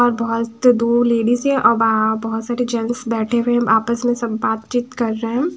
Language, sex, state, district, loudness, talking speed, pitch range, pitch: Hindi, female, Haryana, Charkhi Dadri, -18 LUFS, 215 wpm, 225-245 Hz, 235 Hz